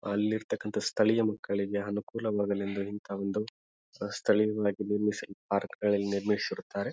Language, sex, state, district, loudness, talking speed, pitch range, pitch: Kannada, male, Karnataka, Bijapur, -31 LUFS, 95 wpm, 100-105 Hz, 105 Hz